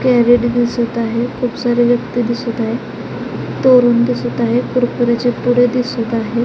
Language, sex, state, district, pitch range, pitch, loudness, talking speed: Marathi, female, Maharashtra, Chandrapur, 235-245 Hz, 240 Hz, -15 LUFS, 140 wpm